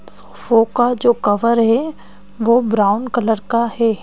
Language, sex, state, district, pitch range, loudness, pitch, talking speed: Hindi, female, Madhya Pradesh, Bhopal, 225-240 Hz, -16 LUFS, 230 Hz, 165 wpm